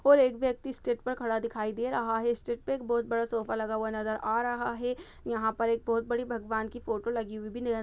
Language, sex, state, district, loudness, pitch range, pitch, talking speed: Hindi, female, Uttar Pradesh, Jyotiba Phule Nagar, -31 LUFS, 225-240 Hz, 230 Hz, 270 wpm